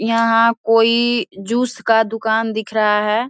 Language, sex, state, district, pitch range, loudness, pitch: Hindi, female, Bihar, Saharsa, 220-230 Hz, -16 LUFS, 225 Hz